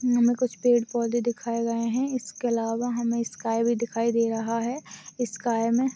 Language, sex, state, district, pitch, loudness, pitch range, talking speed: Hindi, female, Maharashtra, Aurangabad, 235 Hz, -26 LUFS, 230-245 Hz, 190 wpm